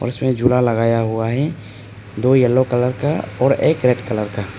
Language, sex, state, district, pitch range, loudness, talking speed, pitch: Hindi, male, Arunachal Pradesh, Papum Pare, 110-125 Hz, -17 LUFS, 180 wpm, 120 Hz